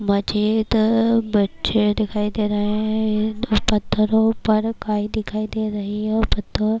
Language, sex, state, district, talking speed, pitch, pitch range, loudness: Urdu, female, Bihar, Kishanganj, 130 wpm, 215 Hz, 210-220 Hz, -20 LUFS